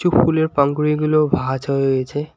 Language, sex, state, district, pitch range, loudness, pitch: Bengali, male, West Bengal, Alipurduar, 140-160 Hz, -18 LUFS, 150 Hz